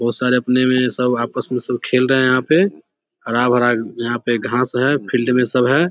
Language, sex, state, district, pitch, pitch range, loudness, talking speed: Hindi, male, Bihar, Samastipur, 125 Hz, 120-130 Hz, -17 LUFS, 225 wpm